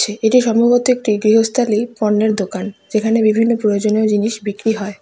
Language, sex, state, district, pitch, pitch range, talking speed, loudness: Bengali, female, West Bengal, Alipurduar, 215 Hz, 210-230 Hz, 145 wpm, -15 LUFS